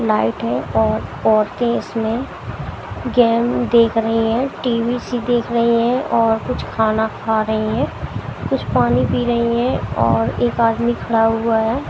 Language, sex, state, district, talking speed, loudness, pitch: Hindi, female, Haryana, Jhajjar, 155 wpm, -18 LUFS, 225 Hz